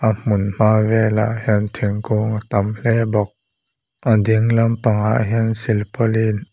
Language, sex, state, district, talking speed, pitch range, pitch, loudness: Mizo, male, Mizoram, Aizawl, 140 wpm, 105-115 Hz, 110 Hz, -18 LUFS